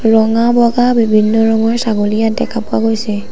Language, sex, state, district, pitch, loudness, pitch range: Assamese, female, Assam, Sonitpur, 225 Hz, -13 LUFS, 220-230 Hz